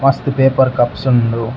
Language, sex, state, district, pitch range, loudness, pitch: Tulu, male, Karnataka, Dakshina Kannada, 120-135 Hz, -14 LUFS, 130 Hz